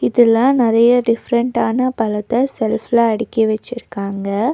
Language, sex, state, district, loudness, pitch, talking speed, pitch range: Tamil, female, Tamil Nadu, Nilgiris, -16 LUFS, 230 Hz, 90 wpm, 220-245 Hz